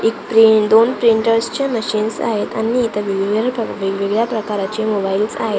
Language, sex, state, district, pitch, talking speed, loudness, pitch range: Marathi, female, Maharashtra, Gondia, 220 Hz, 160 wpm, -16 LUFS, 205-230 Hz